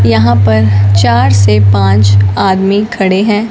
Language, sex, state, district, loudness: Hindi, male, Punjab, Fazilka, -9 LUFS